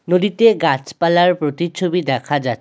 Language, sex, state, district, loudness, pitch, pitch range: Bengali, male, West Bengal, Alipurduar, -16 LUFS, 170 Hz, 145-180 Hz